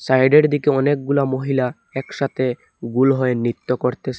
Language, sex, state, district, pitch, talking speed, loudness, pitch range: Bengali, male, Assam, Hailakandi, 135 Hz, 130 wpm, -19 LUFS, 125-140 Hz